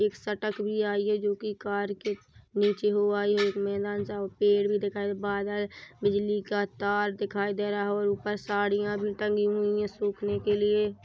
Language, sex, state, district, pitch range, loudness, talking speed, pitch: Hindi, female, Chhattisgarh, Bilaspur, 205-210 Hz, -29 LUFS, 185 wpm, 205 Hz